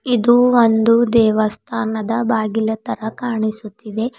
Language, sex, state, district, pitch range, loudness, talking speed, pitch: Kannada, female, Karnataka, Bidar, 220-235 Hz, -17 LUFS, 85 wpm, 225 Hz